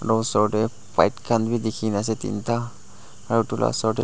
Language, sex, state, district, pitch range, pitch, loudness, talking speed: Nagamese, male, Nagaland, Dimapur, 105-115 Hz, 110 Hz, -23 LUFS, 190 wpm